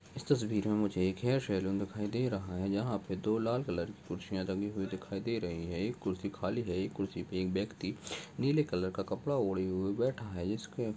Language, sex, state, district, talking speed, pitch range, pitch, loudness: Hindi, male, Uttar Pradesh, Budaun, 235 wpm, 95-110 Hz, 100 Hz, -35 LUFS